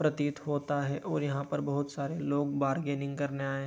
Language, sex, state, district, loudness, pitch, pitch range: Hindi, male, Bihar, Begusarai, -33 LUFS, 145 Hz, 140-145 Hz